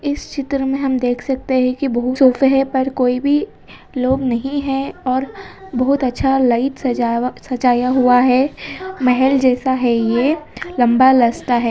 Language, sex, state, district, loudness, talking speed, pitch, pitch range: Hindi, female, Uttar Pradesh, Ghazipur, -16 LUFS, 160 wpm, 260 Hz, 250-275 Hz